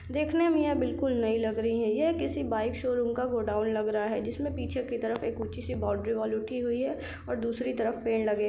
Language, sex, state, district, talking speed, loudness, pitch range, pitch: Hindi, female, Chhattisgarh, Sarguja, 240 wpm, -30 LUFS, 220-250 Hz, 230 Hz